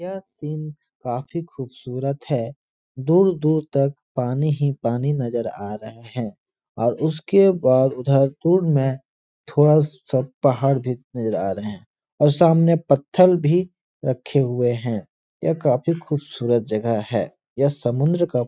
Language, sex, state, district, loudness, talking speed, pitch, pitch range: Hindi, male, Uttar Pradesh, Etah, -21 LUFS, 145 wpm, 135 Hz, 120-155 Hz